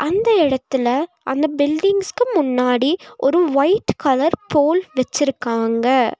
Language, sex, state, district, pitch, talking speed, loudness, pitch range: Tamil, female, Tamil Nadu, Nilgiris, 290 Hz, 95 wpm, -18 LUFS, 260-345 Hz